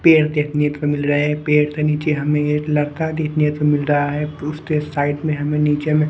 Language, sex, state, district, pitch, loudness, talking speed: Hindi, male, Bihar, West Champaran, 150 Hz, -19 LUFS, 235 wpm